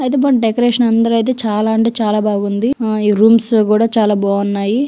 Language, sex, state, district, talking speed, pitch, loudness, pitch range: Telugu, female, Andhra Pradesh, Guntur, 195 wpm, 220 Hz, -14 LUFS, 210-235 Hz